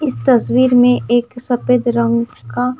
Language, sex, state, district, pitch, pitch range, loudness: Hindi, female, Himachal Pradesh, Shimla, 245 Hz, 240-250 Hz, -15 LUFS